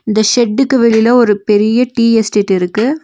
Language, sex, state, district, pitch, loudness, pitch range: Tamil, female, Tamil Nadu, Nilgiris, 225 Hz, -11 LUFS, 210-245 Hz